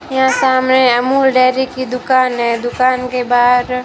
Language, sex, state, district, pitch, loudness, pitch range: Hindi, female, Rajasthan, Bikaner, 255 Hz, -13 LUFS, 245-260 Hz